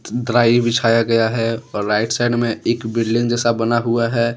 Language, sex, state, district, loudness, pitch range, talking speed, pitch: Hindi, male, Jharkhand, Deoghar, -17 LUFS, 115-120 Hz, 190 wpm, 115 Hz